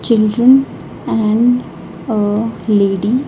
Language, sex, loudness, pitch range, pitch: English, female, -14 LUFS, 210-245 Hz, 220 Hz